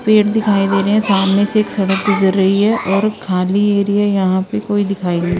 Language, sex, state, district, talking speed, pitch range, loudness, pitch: Hindi, female, Punjab, Kapurthala, 220 wpm, 195-210 Hz, -15 LUFS, 200 Hz